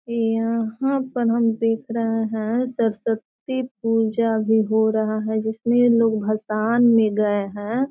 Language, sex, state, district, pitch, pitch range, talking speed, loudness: Hindi, female, Bihar, Sitamarhi, 225 Hz, 220-235 Hz, 135 wpm, -21 LUFS